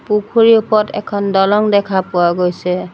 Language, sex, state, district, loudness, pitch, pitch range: Assamese, female, Assam, Sonitpur, -14 LUFS, 200 Hz, 180-210 Hz